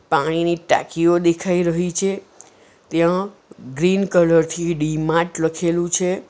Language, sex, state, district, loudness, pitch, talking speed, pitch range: Gujarati, female, Gujarat, Valsad, -19 LUFS, 170 Hz, 115 wpm, 165-180 Hz